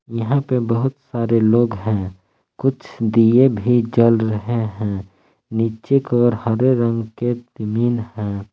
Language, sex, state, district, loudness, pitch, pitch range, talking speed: Hindi, male, Jharkhand, Palamu, -19 LUFS, 115 Hz, 110-120 Hz, 140 wpm